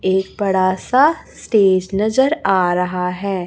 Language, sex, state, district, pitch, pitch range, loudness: Hindi, male, Chhattisgarh, Raipur, 190 Hz, 185-215 Hz, -17 LUFS